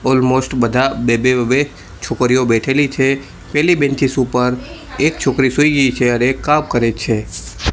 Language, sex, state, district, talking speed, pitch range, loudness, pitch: Gujarati, male, Gujarat, Gandhinagar, 170 wpm, 120-135 Hz, -15 LUFS, 130 Hz